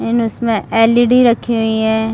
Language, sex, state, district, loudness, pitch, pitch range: Hindi, female, Chhattisgarh, Bastar, -14 LUFS, 225 Hz, 220-235 Hz